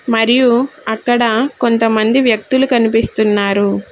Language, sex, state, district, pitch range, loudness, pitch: Telugu, female, Telangana, Hyderabad, 220-250 Hz, -13 LUFS, 230 Hz